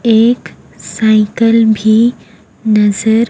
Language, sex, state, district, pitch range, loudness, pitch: Hindi, female, Chhattisgarh, Raipur, 210-230 Hz, -11 LUFS, 220 Hz